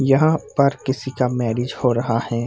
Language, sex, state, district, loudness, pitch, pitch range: Hindi, male, Bihar, Purnia, -20 LUFS, 125 Hz, 120-135 Hz